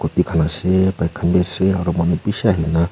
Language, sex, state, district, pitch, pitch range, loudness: Nagamese, male, Nagaland, Kohima, 90 Hz, 85-95 Hz, -18 LUFS